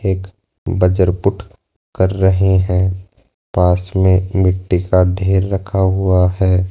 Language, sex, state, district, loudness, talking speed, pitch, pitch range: Hindi, male, Rajasthan, Jaipur, -15 LUFS, 115 wpm, 95 Hz, 90-95 Hz